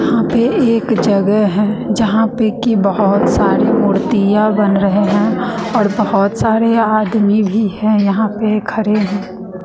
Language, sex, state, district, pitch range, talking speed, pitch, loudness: Hindi, female, Bihar, West Champaran, 200-225 Hz, 150 wpm, 215 Hz, -14 LUFS